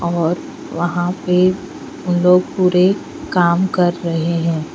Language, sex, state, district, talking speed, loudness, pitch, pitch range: Hindi, female, Bihar, Patna, 125 wpm, -17 LUFS, 175 Hz, 170-180 Hz